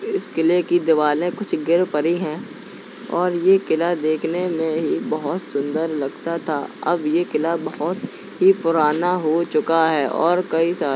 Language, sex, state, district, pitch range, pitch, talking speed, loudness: Hindi, male, Uttar Pradesh, Jalaun, 155-175 Hz, 165 Hz, 170 wpm, -20 LUFS